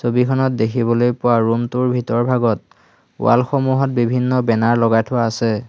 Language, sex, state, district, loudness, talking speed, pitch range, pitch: Assamese, male, Assam, Hailakandi, -17 LUFS, 145 wpm, 115-125 Hz, 120 Hz